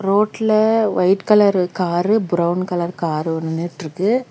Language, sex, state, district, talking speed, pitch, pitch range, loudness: Tamil, female, Karnataka, Bangalore, 125 wpm, 185 Hz, 170-210 Hz, -18 LUFS